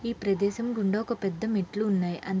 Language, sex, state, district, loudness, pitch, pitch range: Telugu, female, Andhra Pradesh, Srikakulam, -28 LUFS, 205 Hz, 195-220 Hz